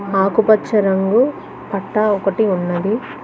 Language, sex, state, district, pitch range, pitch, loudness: Telugu, female, Telangana, Mahabubabad, 195-220 Hz, 210 Hz, -17 LUFS